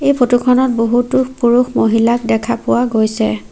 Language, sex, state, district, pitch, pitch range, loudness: Assamese, female, Assam, Sonitpur, 240 Hz, 225-250 Hz, -14 LUFS